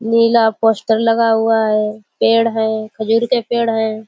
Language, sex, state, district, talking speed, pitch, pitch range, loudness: Hindi, female, Uttar Pradesh, Budaun, 160 wpm, 225 Hz, 220-230 Hz, -15 LUFS